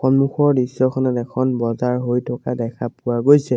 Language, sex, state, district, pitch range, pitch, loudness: Assamese, male, Assam, Sonitpur, 120-130 Hz, 125 Hz, -19 LUFS